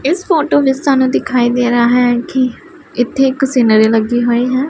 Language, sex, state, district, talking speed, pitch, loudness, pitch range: Punjabi, female, Punjab, Pathankot, 190 wpm, 255 Hz, -13 LUFS, 240-275 Hz